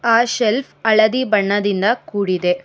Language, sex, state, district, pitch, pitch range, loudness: Kannada, female, Karnataka, Bangalore, 215 Hz, 200-230 Hz, -17 LUFS